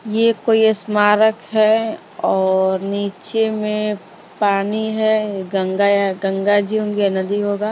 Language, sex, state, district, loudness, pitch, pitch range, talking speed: Hindi, female, Maharashtra, Mumbai Suburban, -18 LUFS, 210 Hz, 195-220 Hz, 130 wpm